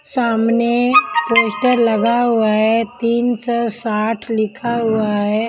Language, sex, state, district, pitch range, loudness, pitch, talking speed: Hindi, female, Punjab, Kapurthala, 220-240 Hz, -16 LUFS, 230 Hz, 120 wpm